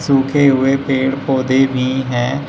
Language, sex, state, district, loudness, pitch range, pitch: Hindi, male, Uttar Pradesh, Shamli, -15 LUFS, 130-135 Hz, 135 Hz